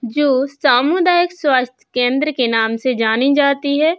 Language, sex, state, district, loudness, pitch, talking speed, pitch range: Hindi, female, Uttar Pradesh, Budaun, -16 LUFS, 275 Hz, 150 wpm, 250-300 Hz